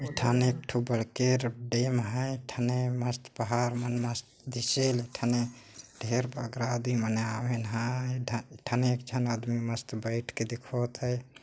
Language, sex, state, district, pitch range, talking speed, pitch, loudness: Chhattisgarhi, male, Chhattisgarh, Jashpur, 120-125 Hz, 155 wpm, 120 Hz, -31 LUFS